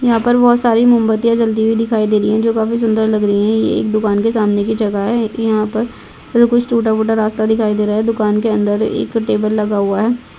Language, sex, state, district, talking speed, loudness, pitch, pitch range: Hindi, female, Chhattisgarh, Balrampur, 255 wpm, -14 LUFS, 220 Hz, 215-230 Hz